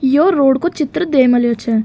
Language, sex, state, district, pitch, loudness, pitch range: Rajasthani, female, Rajasthan, Nagaur, 270 Hz, -14 LUFS, 245-325 Hz